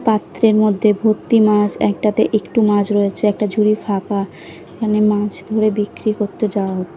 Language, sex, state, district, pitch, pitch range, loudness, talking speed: Bengali, female, Bihar, Katihar, 210 Hz, 205-215 Hz, -17 LUFS, 155 wpm